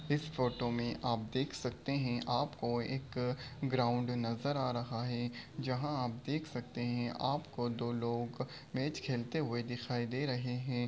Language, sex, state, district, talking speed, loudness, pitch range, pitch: Hindi, male, Uttar Pradesh, Budaun, 165 wpm, -37 LUFS, 120-135 Hz, 125 Hz